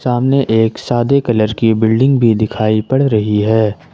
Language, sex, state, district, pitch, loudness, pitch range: Hindi, male, Jharkhand, Ranchi, 110 Hz, -13 LUFS, 110-125 Hz